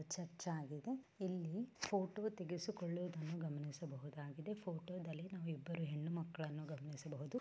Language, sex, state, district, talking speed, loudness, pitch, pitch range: Kannada, female, Karnataka, Bellary, 90 wpm, -46 LUFS, 170 Hz, 155-185 Hz